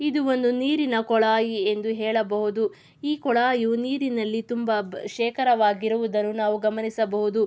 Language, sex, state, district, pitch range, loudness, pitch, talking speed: Kannada, female, Karnataka, Mysore, 215-245 Hz, -24 LUFS, 225 Hz, 105 wpm